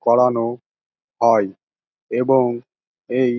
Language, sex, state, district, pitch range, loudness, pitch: Bengali, male, West Bengal, Dakshin Dinajpur, 115-125 Hz, -19 LUFS, 120 Hz